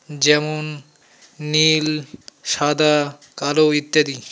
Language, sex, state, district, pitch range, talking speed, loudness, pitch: Bengali, male, West Bengal, Alipurduar, 145-155 Hz, 85 wpm, -18 LUFS, 150 Hz